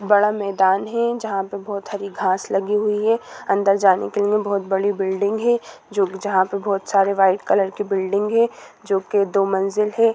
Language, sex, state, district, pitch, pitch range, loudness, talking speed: Hindi, female, Bihar, Gopalganj, 200 Hz, 195-210 Hz, -20 LUFS, 200 wpm